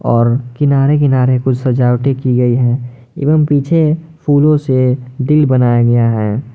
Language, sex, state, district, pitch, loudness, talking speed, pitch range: Hindi, male, Jharkhand, Garhwa, 130 Hz, -13 LUFS, 145 wpm, 125-145 Hz